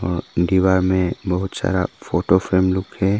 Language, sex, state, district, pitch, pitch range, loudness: Hindi, male, Arunachal Pradesh, Papum Pare, 95 Hz, 90-95 Hz, -19 LUFS